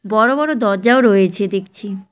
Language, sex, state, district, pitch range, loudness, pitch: Bengali, female, West Bengal, Cooch Behar, 195-235 Hz, -15 LUFS, 205 Hz